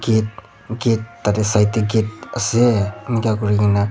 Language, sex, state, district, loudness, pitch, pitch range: Nagamese, male, Nagaland, Kohima, -18 LUFS, 110 Hz, 105-115 Hz